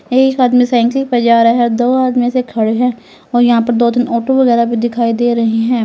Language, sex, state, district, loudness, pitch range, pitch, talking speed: Hindi, female, Uttar Pradesh, Lalitpur, -12 LUFS, 235-250 Hz, 240 Hz, 255 wpm